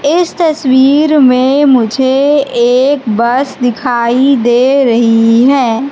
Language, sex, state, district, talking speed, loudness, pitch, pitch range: Hindi, female, Madhya Pradesh, Katni, 100 wpm, -9 LUFS, 260 Hz, 240-280 Hz